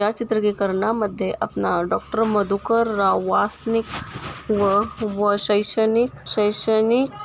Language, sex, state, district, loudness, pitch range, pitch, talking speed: Marathi, female, Maharashtra, Nagpur, -21 LUFS, 195-225 Hz, 210 Hz, 85 wpm